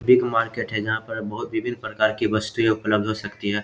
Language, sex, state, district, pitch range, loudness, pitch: Hindi, male, Bihar, Samastipur, 105-115 Hz, -23 LUFS, 110 Hz